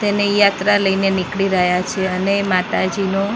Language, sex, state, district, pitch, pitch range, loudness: Gujarati, female, Maharashtra, Mumbai Suburban, 195 Hz, 185-200 Hz, -17 LUFS